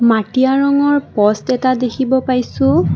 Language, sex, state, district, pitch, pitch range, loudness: Assamese, female, Assam, Kamrup Metropolitan, 255 Hz, 250-275 Hz, -15 LUFS